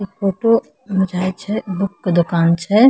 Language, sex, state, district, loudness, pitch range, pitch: Maithili, female, Bihar, Samastipur, -18 LUFS, 180-210 Hz, 195 Hz